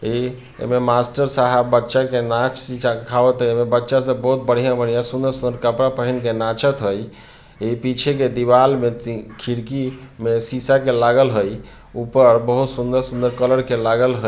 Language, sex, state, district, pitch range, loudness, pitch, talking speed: Bhojpuri, male, Bihar, Sitamarhi, 120-130 Hz, -18 LUFS, 125 Hz, 170 wpm